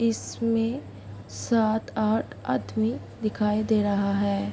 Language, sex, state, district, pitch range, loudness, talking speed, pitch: Hindi, female, Bihar, Kishanganj, 200-220 Hz, -26 LUFS, 95 wpm, 215 Hz